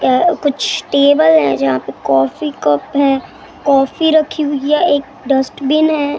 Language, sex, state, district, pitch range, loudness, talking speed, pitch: Hindi, female, Maharashtra, Gondia, 255-300 Hz, -14 LUFS, 155 wpm, 280 Hz